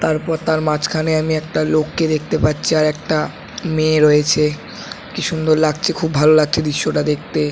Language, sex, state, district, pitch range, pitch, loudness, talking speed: Bengali, male, West Bengal, Kolkata, 150-160 Hz, 155 Hz, -17 LUFS, 160 wpm